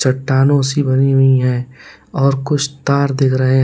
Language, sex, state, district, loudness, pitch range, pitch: Hindi, male, Uttar Pradesh, Lalitpur, -15 LUFS, 130-140 Hz, 135 Hz